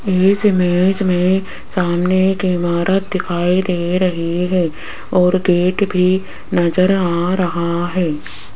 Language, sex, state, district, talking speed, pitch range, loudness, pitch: Hindi, female, Rajasthan, Jaipur, 120 wpm, 175-185 Hz, -16 LUFS, 180 Hz